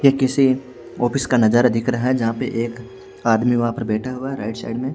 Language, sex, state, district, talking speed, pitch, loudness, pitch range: Hindi, male, Haryana, Jhajjar, 230 wpm, 120 Hz, -20 LUFS, 115-130 Hz